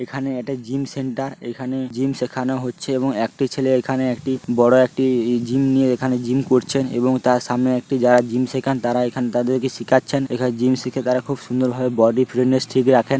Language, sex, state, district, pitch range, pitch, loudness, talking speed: Bengali, male, West Bengal, Paschim Medinipur, 125-130 Hz, 130 Hz, -20 LUFS, 195 wpm